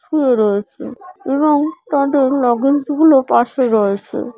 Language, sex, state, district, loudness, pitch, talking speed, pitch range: Bengali, female, West Bengal, Purulia, -15 LUFS, 275 Hz, 110 wpm, 245-295 Hz